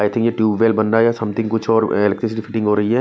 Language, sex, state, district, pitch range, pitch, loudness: Hindi, male, Chhattisgarh, Raipur, 110-115 Hz, 110 Hz, -17 LUFS